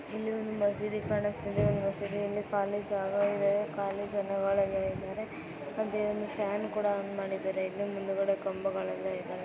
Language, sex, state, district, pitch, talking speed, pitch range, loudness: Kannada, female, Karnataka, Mysore, 200 Hz, 115 wpm, 195-205 Hz, -33 LUFS